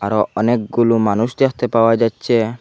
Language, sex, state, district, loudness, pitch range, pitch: Bengali, male, Assam, Hailakandi, -16 LUFS, 110-120 Hz, 115 Hz